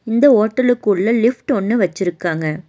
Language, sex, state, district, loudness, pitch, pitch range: Tamil, female, Tamil Nadu, Nilgiris, -16 LUFS, 220 Hz, 180-245 Hz